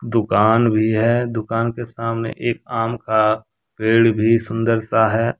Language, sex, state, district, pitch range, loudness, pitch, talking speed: Hindi, male, Jharkhand, Deoghar, 110-115 Hz, -18 LUFS, 115 Hz, 155 wpm